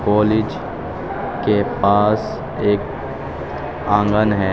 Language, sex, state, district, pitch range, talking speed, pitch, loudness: Hindi, male, Uttar Pradesh, Shamli, 100-105 Hz, 80 wpm, 105 Hz, -19 LUFS